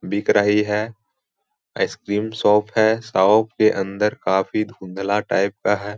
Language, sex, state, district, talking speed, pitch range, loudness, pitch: Hindi, male, Bihar, Jahanabad, 140 wpm, 100-110 Hz, -20 LUFS, 105 Hz